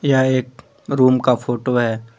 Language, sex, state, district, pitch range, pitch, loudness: Hindi, male, Jharkhand, Deoghar, 120-130 Hz, 125 Hz, -18 LUFS